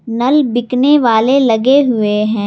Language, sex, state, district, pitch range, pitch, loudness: Hindi, female, Jharkhand, Garhwa, 220-270 Hz, 240 Hz, -12 LUFS